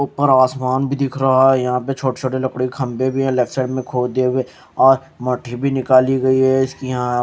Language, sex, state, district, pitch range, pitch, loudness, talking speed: Hindi, male, Haryana, Charkhi Dadri, 125-135 Hz, 130 Hz, -17 LUFS, 240 wpm